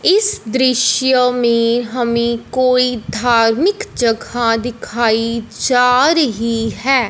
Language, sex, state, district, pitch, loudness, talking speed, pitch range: Hindi, female, Punjab, Fazilka, 240 Hz, -15 LUFS, 95 wpm, 230-255 Hz